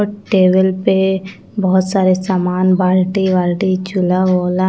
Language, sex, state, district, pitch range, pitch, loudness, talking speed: Hindi, female, Chandigarh, Chandigarh, 185-190 Hz, 185 Hz, -15 LUFS, 115 wpm